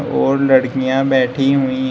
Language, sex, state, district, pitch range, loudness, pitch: Hindi, male, Uttar Pradesh, Shamli, 130-135 Hz, -15 LUFS, 130 Hz